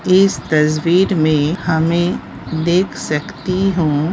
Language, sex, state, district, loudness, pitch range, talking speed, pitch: Hindi, female, Bihar, Begusarai, -16 LUFS, 155-185 Hz, 115 wpm, 165 Hz